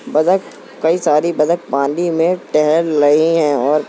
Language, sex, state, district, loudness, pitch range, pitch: Hindi, female, Uttar Pradesh, Jalaun, -15 LUFS, 150-165 Hz, 155 Hz